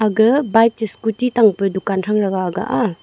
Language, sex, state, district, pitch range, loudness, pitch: Wancho, female, Arunachal Pradesh, Longding, 195-225 Hz, -17 LUFS, 215 Hz